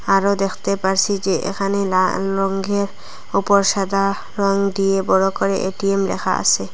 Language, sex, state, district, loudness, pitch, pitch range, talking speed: Bengali, female, Assam, Hailakandi, -19 LUFS, 195 Hz, 195-200 Hz, 140 wpm